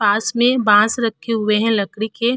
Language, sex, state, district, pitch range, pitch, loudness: Hindi, female, Uttar Pradesh, Hamirpur, 210-235 Hz, 220 Hz, -17 LUFS